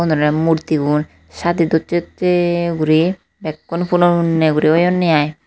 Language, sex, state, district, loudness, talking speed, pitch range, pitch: Chakma, female, Tripura, Unakoti, -16 LUFS, 130 wpm, 155-175 Hz, 165 Hz